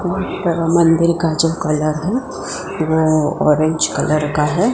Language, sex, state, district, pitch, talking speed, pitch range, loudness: Hindi, female, Gujarat, Gandhinagar, 165 Hz, 125 wpm, 155-170 Hz, -16 LUFS